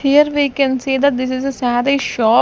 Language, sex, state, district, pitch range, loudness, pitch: English, female, Maharashtra, Gondia, 255-280 Hz, -16 LUFS, 275 Hz